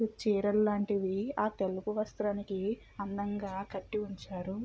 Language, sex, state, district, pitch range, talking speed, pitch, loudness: Telugu, female, Andhra Pradesh, Chittoor, 195-210 Hz, 90 wpm, 205 Hz, -34 LUFS